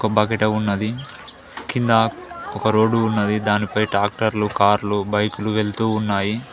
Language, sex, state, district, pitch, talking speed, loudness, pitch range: Telugu, male, Telangana, Mahabubabad, 105 Hz, 120 wpm, -20 LUFS, 105-110 Hz